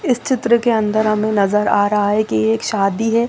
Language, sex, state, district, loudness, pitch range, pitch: Hindi, female, Chandigarh, Chandigarh, -16 LUFS, 205-230 Hz, 215 Hz